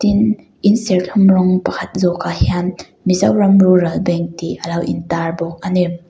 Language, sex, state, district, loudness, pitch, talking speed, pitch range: Mizo, female, Mizoram, Aizawl, -16 LUFS, 180 Hz, 165 wpm, 170-195 Hz